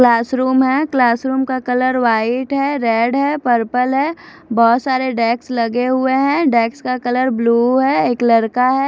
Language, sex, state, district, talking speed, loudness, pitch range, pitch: Hindi, female, Odisha, Khordha, 180 wpm, -16 LUFS, 235-265 Hz, 255 Hz